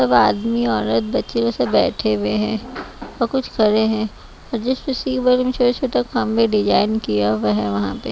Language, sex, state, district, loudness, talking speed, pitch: Hindi, female, Bihar, West Champaran, -19 LUFS, 170 wpm, 220 Hz